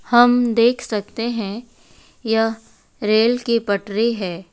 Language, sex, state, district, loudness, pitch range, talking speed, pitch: Hindi, female, West Bengal, Alipurduar, -19 LUFS, 210-235 Hz, 120 wpm, 225 Hz